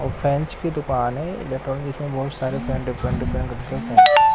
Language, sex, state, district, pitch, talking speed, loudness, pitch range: Hindi, male, Odisha, Nuapada, 135 Hz, 165 wpm, -21 LUFS, 130-150 Hz